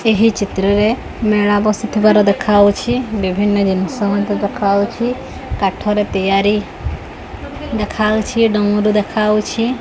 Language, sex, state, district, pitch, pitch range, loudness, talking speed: Odia, female, Odisha, Khordha, 210 Hz, 205-220 Hz, -15 LUFS, 85 wpm